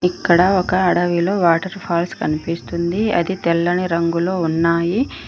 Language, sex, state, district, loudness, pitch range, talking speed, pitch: Telugu, female, Telangana, Mahabubabad, -18 LUFS, 170-185 Hz, 115 wpm, 175 Hz